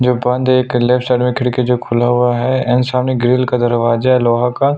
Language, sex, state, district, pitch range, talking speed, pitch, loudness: Hindi, male, Chhattisgarh, Sukma, 120-125 Hz, 265 wpm, 125 Hz, -14 LUFS